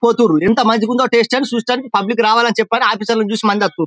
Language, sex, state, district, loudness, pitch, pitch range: Telugu, male, Telangana, Karimnagar, -14 LUFS, 230 Hz, 215-235 Hz